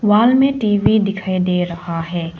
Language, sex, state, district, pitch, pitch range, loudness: Hindi, female, Arunachal Pradesh, Longding, 190 Hz, 175-215 Hz, -16 LUFS